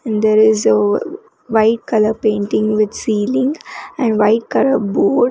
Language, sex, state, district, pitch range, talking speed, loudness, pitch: English, female, Karnataka, Bangalore, 215-230 Hz, 145 wpm, -15 LUFS, 220 Hz